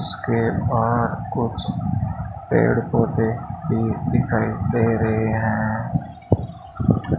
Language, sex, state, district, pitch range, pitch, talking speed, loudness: Hindi, male, Rajasthan, Bikaner, 110-115 Hz, 115 Hz, 85 wpm, -22 LUFS